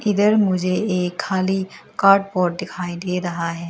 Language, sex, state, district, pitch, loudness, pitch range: Hindi, female, Arunachal Pradesh, Lower Dibang Valley, 185 Hz, -20 LUFS, 180-195 Hz